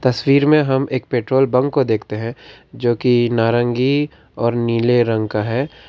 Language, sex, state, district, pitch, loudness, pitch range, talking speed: Hindi, male, Karnataka, Bangalore, 120 Hz, -17 LUFS, 115-135 Hz, 175 wpm